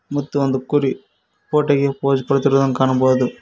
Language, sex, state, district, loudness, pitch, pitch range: Kannada, male, Karnataka, Koppal, -18 LUFS, 135 Hz, 130-140 Hz